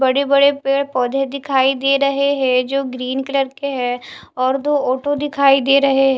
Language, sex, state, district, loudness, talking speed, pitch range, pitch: Hindi, female, Maharashtra, Mumbai Suburban, -17 LUFS, 185 wpm, 260-280 Hz, 275 Hz